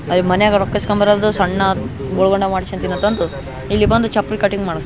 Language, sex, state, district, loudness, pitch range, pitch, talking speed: Kannada, male, Karnataka, Raichur, -16 LUFS, 185-210 Hz, 195 Hz, 185 wpm